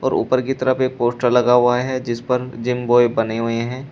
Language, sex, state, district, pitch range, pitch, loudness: Hindi, male, Uttar Pradesh, Shamli, 120-130 Hz, 125 Hz, -18 LUFS